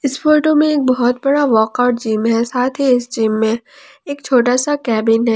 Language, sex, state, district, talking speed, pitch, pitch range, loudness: Hindi, female, Jharkhand, Palamu, 215 wpm, 250 Hz, 230-285 Hz, -15 LUFS